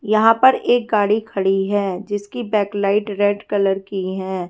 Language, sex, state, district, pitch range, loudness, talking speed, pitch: Hindi, female, Punjab, Fazilka, 195-215 Hz, -18 LUFS, 175 wpm, 205 Hz